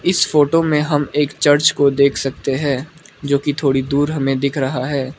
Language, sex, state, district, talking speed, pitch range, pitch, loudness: Hindi, male, Arunachal Pradesh, Lower Dibang Valley, 210 wpm, 135-150 Hz, 145 Hz, -17 LUFS